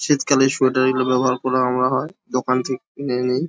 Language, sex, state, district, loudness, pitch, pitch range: Bengali, male, West Bengal, Jhargram, -19 LUFS, 130 Hz, 125-135 Hz